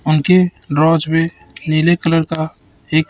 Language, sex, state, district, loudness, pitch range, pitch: Hindi, male, Chhattisgarh, Raipur, -15 LUFS, 155-165 Hz, 165 Hz